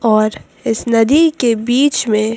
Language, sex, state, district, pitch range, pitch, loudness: Hindi, female, Madhya Pradesh, Bhopal, 215-255 Hz, 230 Hz, -14 LUFS